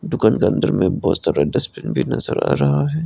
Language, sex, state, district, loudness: Hindi, male, Arunachal Pradesh, Lower Dibang Valley, -17 LUFS